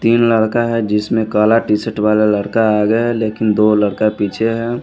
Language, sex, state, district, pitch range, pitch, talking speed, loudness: Hindi, male, Haryana, Jhajjar, 105-115 Hz, 110 Hz, 200 wpm, -15 LUFS